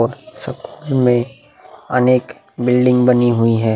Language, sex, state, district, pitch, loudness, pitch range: Hindi, male, Uttar Pradesh, Muzaffarnagar, 125 Hz, -15 LUFS, 120-125 Hz